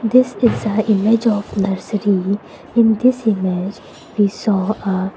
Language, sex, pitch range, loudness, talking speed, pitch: English, female, 195-225 Hz, -17 LUFS, 150 wpm, 210 Hz